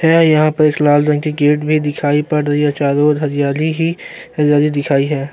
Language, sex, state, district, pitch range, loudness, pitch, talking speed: Hindi, male, Uttarakhand, Tehri Garhwal, 145-155 Hz, -14 LUFS, 150 Hz, 215 wpm